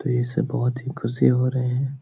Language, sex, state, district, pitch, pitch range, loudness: Hindi, male, Uttar Pradesh, Etah, 130 Hz, 125-135 Hz, -23 LUFS